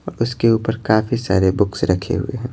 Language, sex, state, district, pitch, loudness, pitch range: Hindi, male, Bihar, Patna, 110 Hz, -18 LUFS, 95-120 Hz